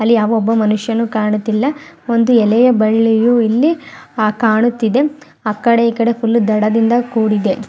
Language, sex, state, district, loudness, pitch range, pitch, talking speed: Kannada, female, Karnataka, Mysore, -14 LUFS, 220-240 Hz, 225 Hz, 115 wpm